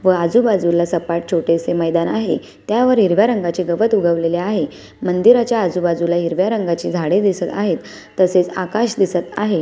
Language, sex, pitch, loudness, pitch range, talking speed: Marathi, female, 180 Hz, -17 LUFS, 170-210 Hz, 135 wpm